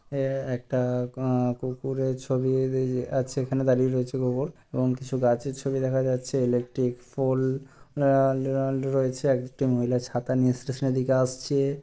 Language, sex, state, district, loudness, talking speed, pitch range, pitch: Bengali, male, West Bengal, Purulia, -26 LUFS, 155 wpm, 125-135 Hz, 130 Hz